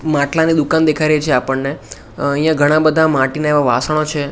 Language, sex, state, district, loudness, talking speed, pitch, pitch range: Gujarati, male, Gujarat, Gandhinagar, -15 LUFS, 165 wpm, 150 Hz, 140-155 Hz